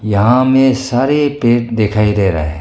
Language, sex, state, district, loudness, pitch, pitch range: Hindi, male, Arunachal Pradesh, Longding, -13 LUFS, 120 Hz, 105-130 Hz